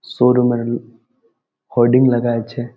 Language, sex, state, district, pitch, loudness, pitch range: Bengali, male, West Bengal, Malda, 120 Hz, -16 LUFS, 120-125 Hz